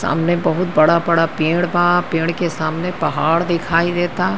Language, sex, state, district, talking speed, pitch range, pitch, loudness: Bhojpuri, female, Uttar Pradesh, Ghazipur, 150 wpm, 165-175 Hz, 170 Hz, -17 LUFS